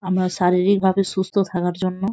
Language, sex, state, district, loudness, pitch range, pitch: Bengali, female, West Bengal, Jhargram, -20 LUFS, 180-195 Hz, 185 Hz